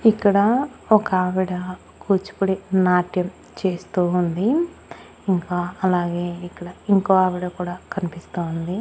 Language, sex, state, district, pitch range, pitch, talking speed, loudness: Telugu, female, Andhra Pradesh, Annamaya, 180-195 Hz, 185 Hz, 95 wpm, -21 LUFS